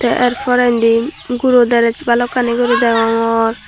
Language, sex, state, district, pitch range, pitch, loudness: Chakma, female, Tripura, Dhalai, 230-245 Hz, 240 Hz, -14 LUFS